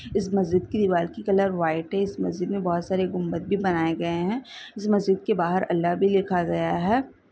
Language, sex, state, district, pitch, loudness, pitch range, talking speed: Hindi, female, Bihar, Saran, 185 Hz, -25 LUFS, 170-200 Hz, 230 wpm